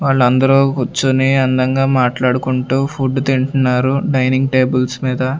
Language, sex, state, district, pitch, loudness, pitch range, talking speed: Telugu, male, Andhra Pradesh, Sri Satya Sai, 130 Hz, -15 LUFS, 130-135 Hz, 110 wpm